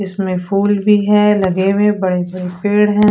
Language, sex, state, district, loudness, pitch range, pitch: Hindi, female, Odisha, Sambalpur, -14 LUFS, 185-210 Hz, 200 Hz